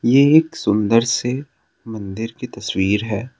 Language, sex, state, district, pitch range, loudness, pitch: Hindi, male, Assam, Sonitpur, 105-125 Hz, -18 LUFS, 115 Hz